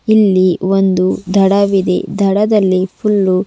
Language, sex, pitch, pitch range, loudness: Kannada, female, 195 Hz, 185-200 Hz, -13 LUFS